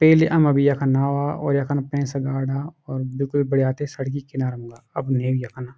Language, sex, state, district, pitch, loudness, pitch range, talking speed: Garhwali, male, Uttarakhand, Uttarkashi, 140 Hz, -22 LUFS, 130-145 Hz, 205 wpm